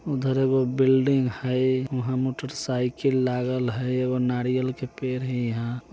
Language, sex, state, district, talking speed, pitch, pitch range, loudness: Bajjika, male, Bihar, Vaishali, 160 wpm, 130 Hz, 125-130 Hz, -25 LUFS